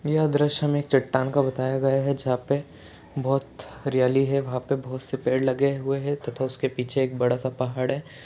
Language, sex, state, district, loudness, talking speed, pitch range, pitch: Hindi, male, Chhattisgarh, Bastar, -25 LUFS, 210 wpm, 130-140 Hz, 135 Hz